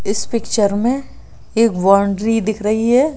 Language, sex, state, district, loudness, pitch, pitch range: Hindi, female, Bihar, Sitamarhi, -16 LUFS, 220 Hz, 205-230 Hz